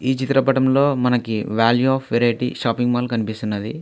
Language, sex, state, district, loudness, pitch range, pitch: Telugu, male, Andhra Pradesh, Visakhapatnam, -19 LUFS, 115-130 Hz, 120 Hz